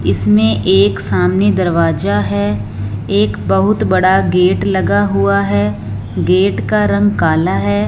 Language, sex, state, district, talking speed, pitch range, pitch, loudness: Hindi, female, Punjab, Fazilka, 130 wpm, 95-105 Hz, 100 Hz, -14 LUFS